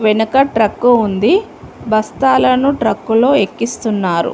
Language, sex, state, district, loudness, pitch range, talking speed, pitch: Telugu, female, Telangana, Mahabubabad, -14 LUFS, 215-260 Hz, 85 wpm, 225 Hz